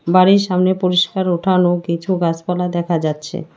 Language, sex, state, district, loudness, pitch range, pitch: Bengali, female, West Bengal, Alipurduar, -16 LUFS, 170-185 Hz, 180 Hz